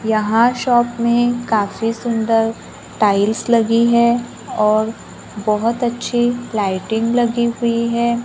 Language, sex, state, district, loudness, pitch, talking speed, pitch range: Hindi, female, Maharashtra, Gondia, -17 LUFS, 230 Hz, 110 wpm, 220-235 Hz